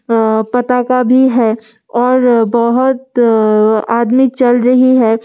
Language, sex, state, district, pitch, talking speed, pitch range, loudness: Hindi, female, Delhi, New Delhi, 240 Hz, 150 wpm, 225-250 Hz, -11 LUFS